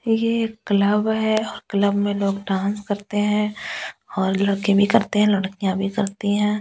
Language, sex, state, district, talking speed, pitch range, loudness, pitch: Hindi, female, Delhi, New Delhi, 170 wpm, 200-210 Hz, -21 LUFS, 205 Hz